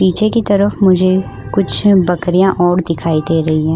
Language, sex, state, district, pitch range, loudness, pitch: Hindi, female, Goa, North and South Goa, 165-195 Hz, -13 LUFS, 185 Hz